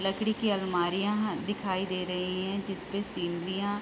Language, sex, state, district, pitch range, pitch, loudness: Hindi, female, Bihar, Gopalganj, 185-205 Hz, 195 Hz, -31 LUFS